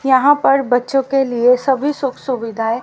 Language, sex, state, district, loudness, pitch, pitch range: Hindi, female, Haryana, Rohtak, -16 LUFS, 265 Hz, 245-275 Hz